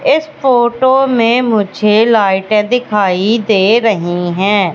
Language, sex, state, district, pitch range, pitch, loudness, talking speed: Hindi, female, Madhya Pradesh, Katni, 200-245 Hz, 220 Hz, -12 LUFS, 115 wpm